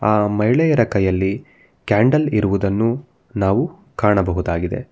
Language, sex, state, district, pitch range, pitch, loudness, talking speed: Kannada, male, Karnataka, Bangalore, 95-125 Hz, 105 Hz, -18 LUFS, 85 wpm